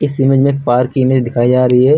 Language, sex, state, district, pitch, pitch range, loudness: Hindi, male, Uttar Pradesh, Lucknow, 130 Hz, 125-135 Hz, -12 LUFS